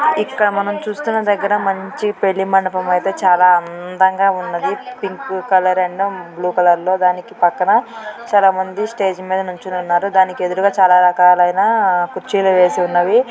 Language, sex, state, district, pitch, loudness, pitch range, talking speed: Telugu, female, Andhra Pradesh, Guntur, 190 Hz, -15 LUFS, 180-200 Hz, 140 wpm